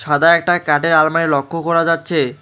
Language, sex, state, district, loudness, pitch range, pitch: Bengali, male, West Bengal, Alipurduar, -15 LUFS, 150-165 Hz, 165 Hz